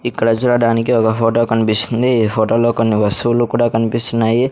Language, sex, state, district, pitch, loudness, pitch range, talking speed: Telugu, male, Andhra Pradesh, Sri Satya Sai, 115 Hz, -15 LUFS, 115-120 Hz, 145 wpm